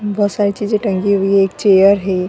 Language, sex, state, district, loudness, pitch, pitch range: Hindi, female, Bihar, Gaya, -14 LUFS, 200 Hz, 195-205 Hz